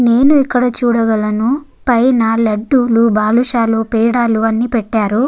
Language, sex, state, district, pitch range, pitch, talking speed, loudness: Telugu, female, Andhra Pradesh, Guntur, 225-245 Hz, 230 Hz, 100 wpm, -13 LUFS